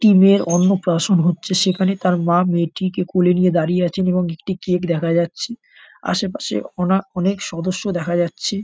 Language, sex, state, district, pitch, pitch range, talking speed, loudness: Bengali, male, West Bengal, North 24 Parganas, 180 Hz, 175-190 Hz, 160 wpm, -18 LUFS